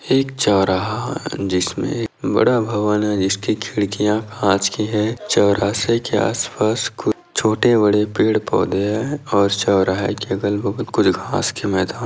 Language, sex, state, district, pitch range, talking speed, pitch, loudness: Hindi, male, Andhra Pradesh, Chittoor, 100-110 Hz, 125 wpm, 105 Hz, -19 LUFS